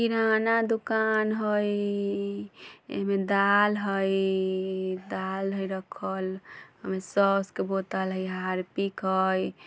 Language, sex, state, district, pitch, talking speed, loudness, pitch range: Bajjika, female, Bihar, Vaishali, 195 Hz, 100 wpm, -27 LUFS, 190-205 Hz